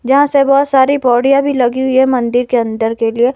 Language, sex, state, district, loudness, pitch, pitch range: Hindi, female, Himachal Pradesh, Shimla, -12 LUFS, 260 Hz, 240-275 Hz